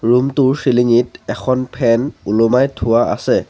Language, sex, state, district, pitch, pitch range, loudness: Assamese, male, Assam, Sonitpur, 125 Hz, 115-130 Hz, -15 LUFS